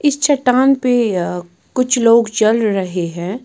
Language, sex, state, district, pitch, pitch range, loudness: Hindi, female, Bihar, Patna, 230 Hz, 185-255 Hz, -15 LUFS